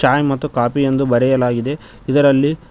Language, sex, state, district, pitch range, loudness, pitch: Kannada, male, Karnataka, Koppal, 125-145 Hz, -16 LUFS, 135 Hz